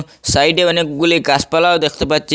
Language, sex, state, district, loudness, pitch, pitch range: Bengali, male, Assam, Hailakandi, -14 LUFS, 155 Hz, 145-170 Hz